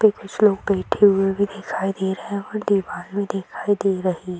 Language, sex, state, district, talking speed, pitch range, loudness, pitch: Hindi, female, Bihar, Jahanabad, 230 wpm, 190-205 Hz, -21 LUFS, 200 Hz